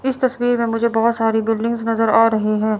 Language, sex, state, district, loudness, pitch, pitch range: Hindi, female, Chandigarh, Chandigarh, -18 LUFS, 225 Hz, 225-235 Hz